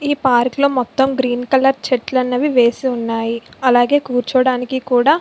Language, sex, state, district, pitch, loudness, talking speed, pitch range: Telugu, female, Andhra Pradesh, Visakhapatnam, 255 Hz, -16 LUFS, 160 wpm, 245-265 Hz